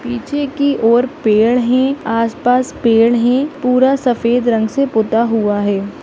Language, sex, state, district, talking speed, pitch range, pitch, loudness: Hindi, female, Bihar, Madhepura, 150 wpm, 225-265 Hz, 240 Hz, -14 LUFS